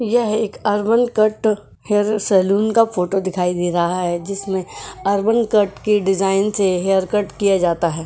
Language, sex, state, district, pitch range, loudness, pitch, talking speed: Hindi, female, Goa, North and South Goa, 185-215 Hz, -18 LUFS, 200 Hz, 165 wpm